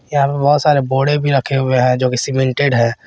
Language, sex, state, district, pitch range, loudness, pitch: Hindi, male, Jharkhand, Garhwa, 130-140 Hz, -15 LUFS, 135 Hz